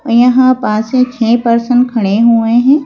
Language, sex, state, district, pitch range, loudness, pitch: Hindi, female, Madhya Pradesh, Bhopal, 230-255 Hz, -11 LUFS, 240 Hz